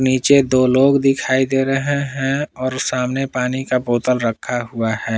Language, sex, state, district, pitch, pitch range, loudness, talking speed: Hindi, male, Jharkhand, Palamu, 130 Hz, 125-135 Hz, -17 LUFS, 175 wpm